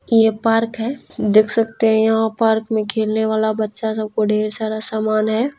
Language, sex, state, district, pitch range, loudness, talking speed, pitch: Maithili, female, Bihar, Saharsa, 215-225 Hz, -18 LUFS, 195 wpm, 220 Hz